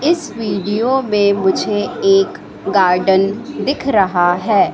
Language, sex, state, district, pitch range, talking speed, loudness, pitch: Hindi, female, Madhya Pradesh, Katni, 190-265 Hz, 115 wpm, -15 LUFS, 205 Hz